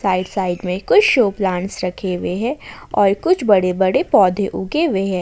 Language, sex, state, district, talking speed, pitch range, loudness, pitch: Hindi, female, Jharkhand, Ranchi, 195 wpm, 185-205 Hz, -17 LUFS, 190 Hz